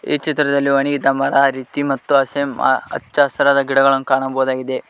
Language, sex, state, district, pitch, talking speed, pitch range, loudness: Kannada, male, Karnataka, Koppal, 135 Hz, 135 wpm, 135-140 Hz, -17 LUFS